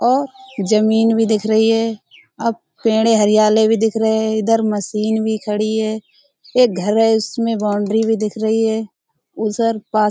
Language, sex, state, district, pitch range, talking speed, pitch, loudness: Hindi, female, Uttar Pradesh, Budaun, 215-225 Hz, 165 wpm, 220 Hz, -17 LUFS